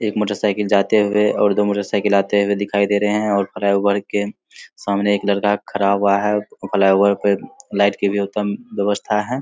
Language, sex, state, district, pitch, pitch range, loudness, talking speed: Hindi, male, Bihar, Begusarai, 100 Hz, 100-105 Hz, -18 LUFS, 215 wpm